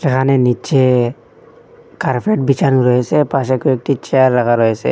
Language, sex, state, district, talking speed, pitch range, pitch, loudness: Bengali, male, Assam, Hailakandi, 120 wpm, 125-150 Hz, 135 Hz, -14 LUFS